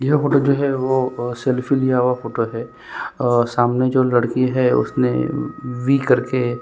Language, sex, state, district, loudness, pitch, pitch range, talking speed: Hindi, male, Chhattisgarh, Kabirdham, -19 LUFS, 125 Hz, 120-130 Hz, 170 wpm